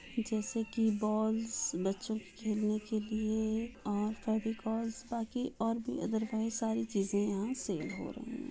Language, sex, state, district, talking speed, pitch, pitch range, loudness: Hindi, female, Bihar, Jahanabad, 155 wpm, 220 Hz, 215-230 Hz, -35 LUFS